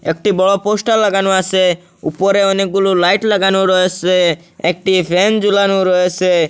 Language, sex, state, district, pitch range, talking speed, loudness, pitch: Bengali, male, Assam, Hailakandi, 180-195 Hz, 130 wpm, -13 LUFS, 190 Hz